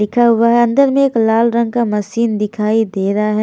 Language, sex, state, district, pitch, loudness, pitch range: Hindi, female, Haryana, Jhajjar, 225 Hz, -14 LUFS, 210-235 Hz